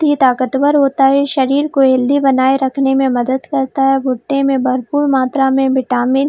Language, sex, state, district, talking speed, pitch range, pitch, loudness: Hindi, female, Jharkhand, Jamtara, 190 wpm, 260-275 Hz, 270 Hz, -14 LUFS